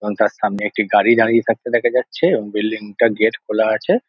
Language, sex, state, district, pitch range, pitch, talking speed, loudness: Bengali, male, West Bengal, Jhargram, 105-115 Hz, 110 Hz, 235 wpm, -17 LUFS